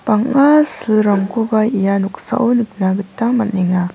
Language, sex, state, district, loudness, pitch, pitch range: Garo, female, Meghalaya, West Garo Hills, -15 LUFS, 215 Hz, 195-235 Hz